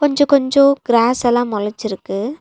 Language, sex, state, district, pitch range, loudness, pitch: Tamil, female, Tamil Nadu, Nilgiris, 220-280 Hz, -16 LUFS, 245 Hz